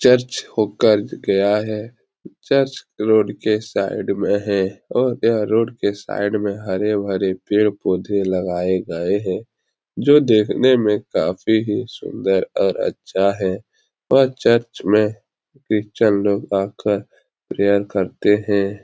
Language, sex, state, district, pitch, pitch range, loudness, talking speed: Hindi, male, Bihar, Jahanabad, 105 Hz, 100-115 Hz, -19 LUFS, 125 wpm